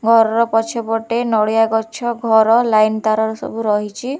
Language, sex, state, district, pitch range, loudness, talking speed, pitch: Odia, female, Odisha, Khordha, 220-230 Hz, -16 LUFS, 145 wpm, 225 Hz